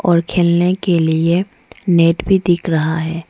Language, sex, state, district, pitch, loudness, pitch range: Hindi, female, Arunachal Pradesh, Lower Dibang Valley, 170 Hz, -15 LUFS, 165-180 Hz